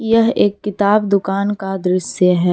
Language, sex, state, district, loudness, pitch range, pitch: Hindi, female, Jharkhand, Garhwa, -16 LUFS, 185-210 Hz, 200 Hz